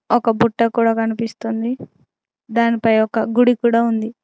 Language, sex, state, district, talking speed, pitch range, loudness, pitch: Telugu, female, Telangana, Mahabubabad, 125 wpm, 225-235 Hz, -18 LUFS, 230 Hz